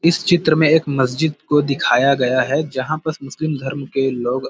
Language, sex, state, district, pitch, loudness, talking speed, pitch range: Hindi, male, Chhattisgarh, Bilaspur, 140 Hz, -18 LUFS, 200 wpm, 135-155 Hz